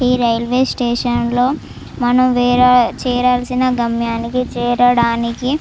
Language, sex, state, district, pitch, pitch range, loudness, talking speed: Telugu, female, Andhra Pradesh, Chittoor, 245 Hz, 240-250 Hz, -15 LUFS, 120 wpm